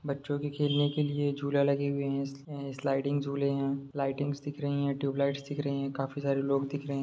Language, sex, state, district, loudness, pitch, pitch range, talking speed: Hindi, male, Jharkhand, Jamtara, -31 LUFS, 140 Hz, 140-145 Hz, 230 wpm